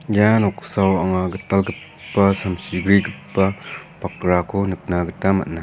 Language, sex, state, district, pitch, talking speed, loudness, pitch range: Garo, male, Meghalaya, West Garo Hills, 95 Hz, 105 wpm, -20 LUFS, 90-100 Hz